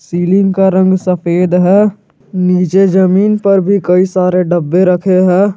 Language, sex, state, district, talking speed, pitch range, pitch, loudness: Hindi, male, Jharkhand, Garhwa, 150 wpm, 180-195 Hz, 185 Hz, -11 LUFS